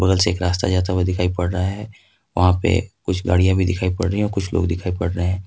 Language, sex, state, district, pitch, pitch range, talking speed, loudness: Hindi, male, Jharkhand, Ranchi, 90 Hz, 90-95 Hz, 250 wpm, -20 LUFS